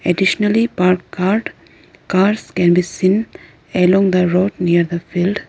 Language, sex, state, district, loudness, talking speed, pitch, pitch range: English, female, Arunachal Pradesh, Lower Dibang Valley, -16 LUFS, 140 wpm, 185 Hz, 180-195 Hz